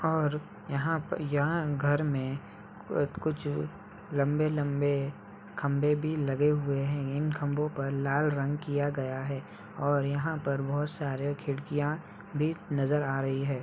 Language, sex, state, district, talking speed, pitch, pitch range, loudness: Hindi, male, Uttar Pradesh, Budaun, 145 wpm, 145 Hz, 140-150 Hz, -31 LUFS